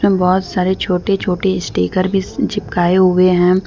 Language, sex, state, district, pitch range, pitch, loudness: Hindi, female, Jharkhand, Deoghar, 180-190 Hz, 185 Hz, -15 LUFS